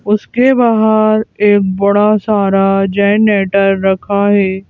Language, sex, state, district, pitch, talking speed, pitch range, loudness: Hindi, female, Madhya Pradesh, Bhopal, 205 Hz, 100 wpm, 195-215 Hz, -11 LUFS